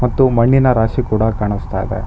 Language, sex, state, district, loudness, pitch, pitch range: Kannada, male, Karnataka, Bangalore, -15 LUFS, 110 Hz, 105-125 Hz